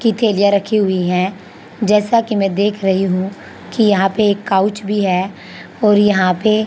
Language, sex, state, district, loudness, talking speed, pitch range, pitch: Hindi, female, Haryana, Charkhi Dadri, -15 LUFS, 200 wpm, 190-210 Hz, 205 Hz